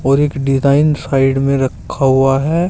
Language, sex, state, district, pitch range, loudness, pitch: Hindi, male, Uttar Pradesh, Saharanpur, 135-145 Hz, -14 LUFS, 135 Hz